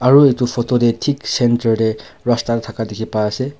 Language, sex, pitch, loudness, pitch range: Nagamese, male, 120 Hz, -17 LUFS, 110-125 Hz